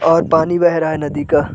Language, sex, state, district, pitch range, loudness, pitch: Hindi, male, Chhattisgarh, Sarguja, 150-165 Hz, -15 LUFS, 160 Hz